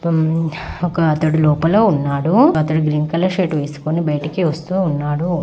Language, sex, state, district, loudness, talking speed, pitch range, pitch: Telugu, female, Andhra Pradesh, Guntur, -17 LUFS, 100 wpm, 150-175 Hz, 160 Hz